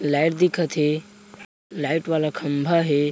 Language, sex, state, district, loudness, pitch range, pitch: Chhattisgarhi, male, Chhattisgarh, Bilaspur, -22 LUFS, 150-175 Hz, 160 Hz